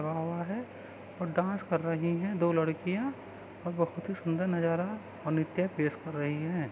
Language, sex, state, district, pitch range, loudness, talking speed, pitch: Hindi, female, Maharashtra, Sindhudurg, 160-180 Hz, -32 LUFS, 170 wpm, 170 Hz